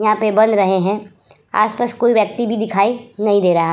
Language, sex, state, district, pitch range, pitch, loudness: Hindi, female, Uttar Pradesh, Budaun, 200-225 Hz, 215 Hz, -16 LUFS